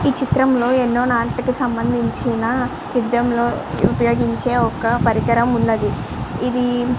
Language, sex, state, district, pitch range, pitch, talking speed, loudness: Telugu, male, Andhra Pradesh, Srikakulam, 235-250 Hz, 240 Hz, 105 wpm, -18 LUFS